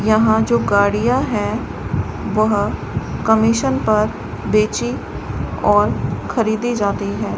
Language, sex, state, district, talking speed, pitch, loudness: Hindi, male, Rajasthan, Bikaner, 100 wpm, 200 Hz, -18 LUFS